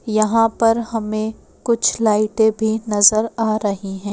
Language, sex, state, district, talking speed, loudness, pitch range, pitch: Hindi, female, Madhya Pradesh, Bhopal, 145 wpm, -17 LUFS, 215-225 Hz, 220 Hz